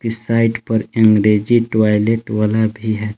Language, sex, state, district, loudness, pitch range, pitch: Hindi, male, Jharkhand, Palamu, -15 LUFS, 105-115 Hz, 110 Hz